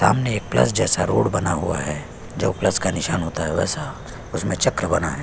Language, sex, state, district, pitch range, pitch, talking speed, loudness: Hindi, male, Chhattisgarh, Sukma, 80-95 Hz, 90 Hz, 220 wpm, -21 LUFS